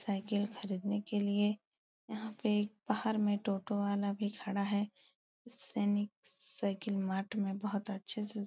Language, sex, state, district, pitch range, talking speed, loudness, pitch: Hindi, female, Uttar Pradesh, Etah, 200-210 Hz, 150 wpm, -36 LUFS, 205 Hz